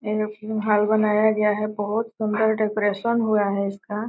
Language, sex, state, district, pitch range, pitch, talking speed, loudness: Hindi, female, Bihar, Gopalganj, 210-220 Hz, 215 Hz, 145 wpm, -22 LUFS